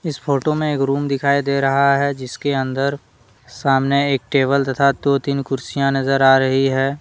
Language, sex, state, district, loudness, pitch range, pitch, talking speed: Hindi, male, Jharkhand, Deoghar, -18 LUFS, 135-140 Hz, 140 Hz, 190 wpm